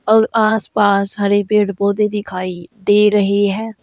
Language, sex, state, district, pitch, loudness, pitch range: Hindi, female, Uttar Pradesh, Saharanpur, 205 Hz, -16 LUFS, 200-210 Hz